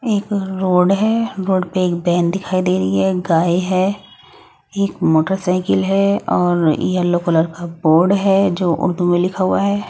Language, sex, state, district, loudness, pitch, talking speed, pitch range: Hindi, female, Odisha, Nuapada, -16 LUFS, 185 Hz, 170 wpm, 175-195 Hz